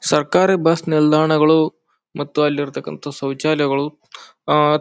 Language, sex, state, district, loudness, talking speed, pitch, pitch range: Kannada, male, Karnataka, Bijapur, -17 LUFS, 110 wpm, 150 Hz, 145-155 Hz